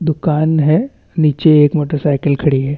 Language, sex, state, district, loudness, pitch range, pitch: Hindi, male, Chhattisgarh, Bastar, -14 LUFS, 145-160 Hz, 150 Hz